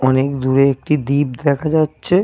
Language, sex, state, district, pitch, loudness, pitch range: Bengali, male, Jharkhand, Jamtara, 140 Hz, -16 LUFS, 135-155 Hz